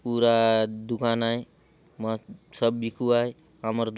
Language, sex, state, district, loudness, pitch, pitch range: Halbi, male, Chhattisgarh, Bastar, -26 LUFS, 115 Hz, 110-120 Hz